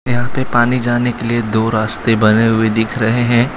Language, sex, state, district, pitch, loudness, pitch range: Hindi, male, Gujarat, Valsad, 120 Hz, -15 LUFS, 110-120 Hz